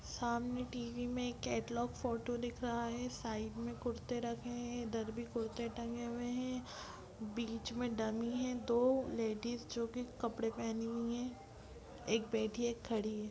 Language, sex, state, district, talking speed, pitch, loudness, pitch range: Hindi, female, Bihar, Sitamarhi, 160 wpm, 235 Hz, -40 LUFS, 230-245 Hz